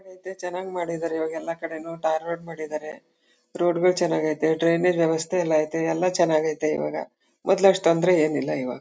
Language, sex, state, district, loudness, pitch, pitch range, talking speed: Kannada, female, Karnataka, Mysore, -24 LUFS, 165 Hz, 160-180 Hz, 190 wpm